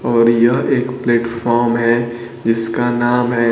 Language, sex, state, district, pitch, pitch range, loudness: Hindi, male, Bihar, Kaimur, 120 Hz, 115-120 Hz, -16 LUFS